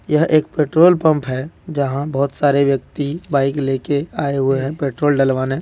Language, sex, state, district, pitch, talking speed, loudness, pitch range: Hindi, male, Jharkhand, Deoghar, 140 Hz, 170 wpm, -17 LUFS, 135-155 Hz